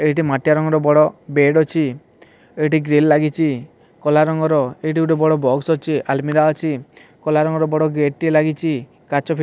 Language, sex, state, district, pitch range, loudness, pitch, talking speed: Odia, male, Odisha, Sambalpur, 145-155 Hz, -17 LUFS, 155 Hz, 180 wpm